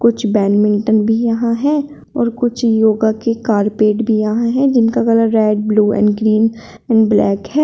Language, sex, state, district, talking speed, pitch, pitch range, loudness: Hindi, female, Uttar Pradesh, Shamli, 175 wpm, 225 Hz, 215-235 Hz, -14 LUFS